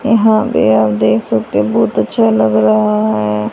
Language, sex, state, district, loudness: Hindi, female, Haryana, Charkhi Dadri, -12 LUFS